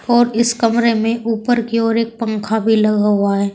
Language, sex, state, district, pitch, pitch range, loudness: Hindi, female, Uttar Pradesh, Saharanpur, 225 Hz, 215-235 Hz, -16 LUFS